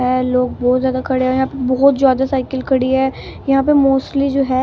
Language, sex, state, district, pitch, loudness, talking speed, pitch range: Hindi, female, Bihar, West Champaran, 265 Hz, -16 LUFS, 235 wpm, 255-270 Hz